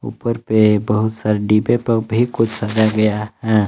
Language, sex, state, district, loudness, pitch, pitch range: Hindi, male, Jharkhand, Palamu, -17 LUFS, 110 Hz, 105-115 Hz